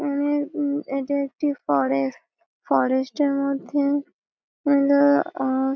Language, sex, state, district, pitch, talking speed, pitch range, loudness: Bengali, female, West Bengal, Malda, 280 Hz, 105 wpm, 270-290 Hz, -23 LUFS